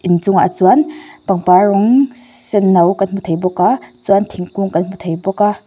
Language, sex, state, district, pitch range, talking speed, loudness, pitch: Mizo, female, Mizoram, Aizawl, 180-205 Hz, 200 wpm, -14 LUFS, 195 Hz